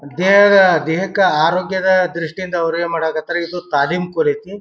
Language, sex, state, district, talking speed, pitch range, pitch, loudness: Kannada, male, Karnataka, Bijapur, 145 wpm, 165-190 Hz, 175 Hz, -16 LUFS